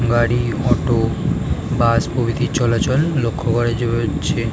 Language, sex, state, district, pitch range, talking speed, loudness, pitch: Bengali, male, West Bengal, North 24 Parganas, 115-125 Hz, 105 wpm, -18 LUFS, 120 Hz